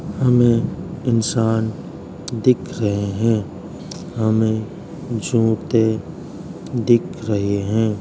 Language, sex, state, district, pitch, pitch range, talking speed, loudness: Hindi, male, Uttar Pradesh, Jalaun, 115 Hz, 110-125 Hz, 75 wpm, -19 LUFS